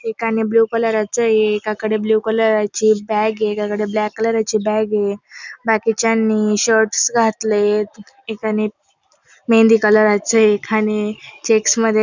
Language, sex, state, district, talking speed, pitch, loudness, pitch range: Marathi, female, Maharashtra, Dhule, 125 wpm, 220 Hz, -16 LUFS, 215-225 Hz